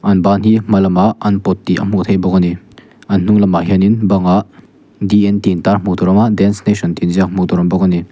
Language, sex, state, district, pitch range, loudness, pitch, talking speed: Mizo, male, Mizoram, Aizawl, 90-100 Hz, -13 LUFS, 95 Hz, 290 wpm